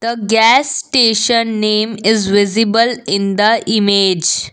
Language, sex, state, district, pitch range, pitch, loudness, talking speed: English, female, Assam, Kamrup Metropolitan, 205-230 Hz, 220 Hz, -13 LUFS, 120 wpm